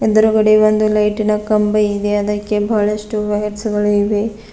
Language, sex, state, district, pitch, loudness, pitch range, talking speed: Kannada, female, Karnataka, Bidar, 210 Hz, -15 LUFS, 210-215 Hz, 145 wpm